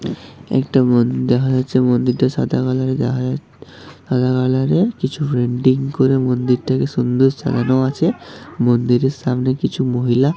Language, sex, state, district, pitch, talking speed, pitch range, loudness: Bengali, male, West Bengal, Purulia, 130 Hz, 140 wpm, 125-135 Hz, -17 LUFS